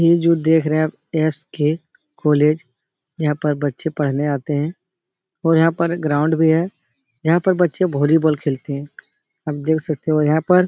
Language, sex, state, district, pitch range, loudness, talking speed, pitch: Hindi, male, Uttar Pradesh, Etah, 150-165 Hz, -19 LUFS, 190 wpm, 155 Hz